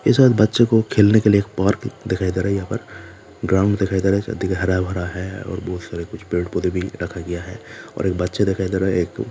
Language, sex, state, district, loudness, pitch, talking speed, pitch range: Hindi, male, Jharkhand, Jamtara, -20 LUFS, 95 Hz, 260 wpm, 90-105 Hz